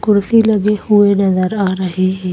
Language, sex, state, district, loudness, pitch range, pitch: Hindi, female, Madhya Pradesh, Bhopal, -13 LUFS, 185-210 Hz, 200 Hz